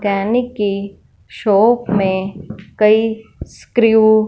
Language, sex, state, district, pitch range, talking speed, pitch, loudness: Hindi, female, Punjab, Fazilka, 200-225 Hz, 100 wpm, 215 Hz, -15 LUFS